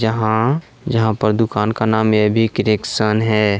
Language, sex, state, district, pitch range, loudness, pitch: Hindi, male, Jharkhand, Deoghar, 110-115 Hz, -17 LUFS, 110 Hz